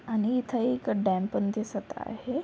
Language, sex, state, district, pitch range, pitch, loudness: Marathi, female, Maharashtra, Aurangabad, 205-250 Hz, 230 Hz, -29 LUFS